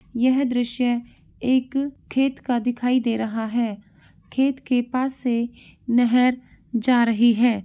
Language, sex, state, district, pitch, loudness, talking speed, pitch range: Angika, male, Bihar, Madhepura, 245 Hz, -22 LUFS, 135 wpm, 235-255 Hz